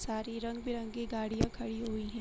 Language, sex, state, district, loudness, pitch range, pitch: Hindi, female, Jharkhand, Jamtara, -37 LUFS, 220-235 Hz, 230 Hz